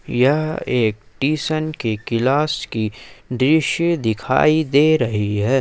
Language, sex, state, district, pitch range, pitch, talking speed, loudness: Hindi, male, Jharkhand, Ranchi, 110-155 Hz, 130 Hz, 115 wpm, -19 LUFS